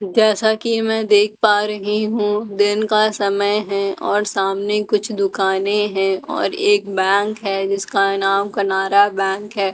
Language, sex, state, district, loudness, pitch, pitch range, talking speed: Hindi, female, Delhi, New Delhi, -18 LUFS, 205 Hz, 195-210 Hz, 155 wpm